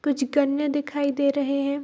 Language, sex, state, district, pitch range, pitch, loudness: Hindi, female, Bihar, Darbhanga, 280-290 Hz, 280 Hz, -24 LUFS